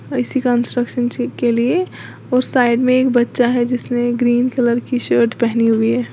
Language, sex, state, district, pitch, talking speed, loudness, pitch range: Hindi, female, Uttar Pradesh, Lalitpur, 245 Hz, 175 wpm, -16 LUFS, 240-250 Hz